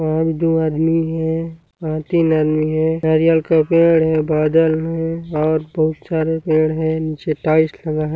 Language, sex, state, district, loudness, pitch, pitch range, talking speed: Hindi, male, Chhattisgarh, Sarguja, -17 LUFS, 160 Hz, 155-165 Hz, 170 wpm